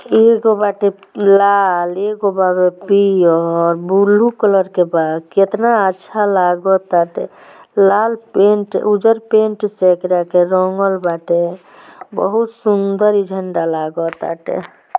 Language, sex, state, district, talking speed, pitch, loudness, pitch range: Bhojpuri, female, Bihar, Gopalganj, 110 wpm, 195 Hz, -14 LUFS, 180-210 Hz